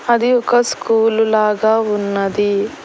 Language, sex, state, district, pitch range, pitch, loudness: Telugu, female, Andhra Pradesh, Annamaya, 205-235 Hz, 220 Hz, -15 LUFS